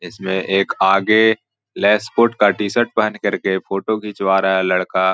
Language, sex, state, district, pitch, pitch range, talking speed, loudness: Hindi, male, Bihar, Jahanabad, 100 Hz, 95-110 Hz, 165 wpm, -17 LUFS